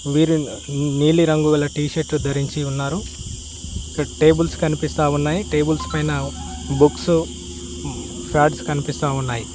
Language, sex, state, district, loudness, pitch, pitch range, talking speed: Telugu, male, Telangana, Mahabubabad, -20 LUFS, 145 Hz, 105-155 Hz, 95 wpm